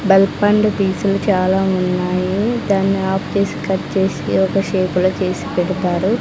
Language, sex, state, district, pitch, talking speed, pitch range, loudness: Telugu, female, Andhra Pradesh, Sri Satya Sai, 190 Hz, 135 wpm, 185-195 Hz, -17 LUFS